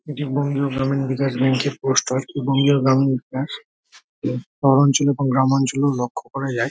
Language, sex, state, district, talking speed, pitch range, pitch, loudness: Bengali, male, West Bengal, Dakshin Dinajpur, 125 wpm, 130-140 Hz, 135 Hz, -20 LUFS